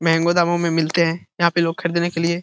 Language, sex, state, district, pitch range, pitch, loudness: Hindi, male, Bihar, Jahanabad, 165-170 Hz, 170 Hz, -19 LUFS